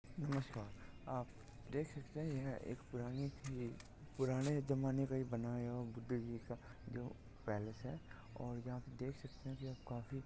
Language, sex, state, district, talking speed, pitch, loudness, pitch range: Hindi, male, Maharashtra, Dhule, 165 wpm, 125 Hz, -45 LUFS, 120-135 Hz